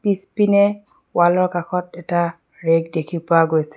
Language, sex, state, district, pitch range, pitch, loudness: Assamese, female, Assam, Sonitpur, 165-190 Hz, 175 Hz, -19 LUFS